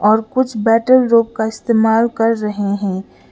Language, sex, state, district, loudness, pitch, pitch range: Hindi, female, Sikkim, Gangtok, -15 LUFS, 225 Hz, 210-230 Hz